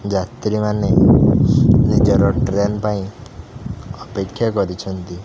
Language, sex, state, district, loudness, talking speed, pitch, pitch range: Odia, male, Odisha, Khordha, -16 LUFS, 70 wpm, 100 Hz, 95-105 Hz